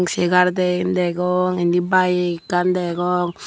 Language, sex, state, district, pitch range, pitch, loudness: Chakma, female, Tripura, Unakoti, 175-180 Hz, 180 Hz, -19 LUFS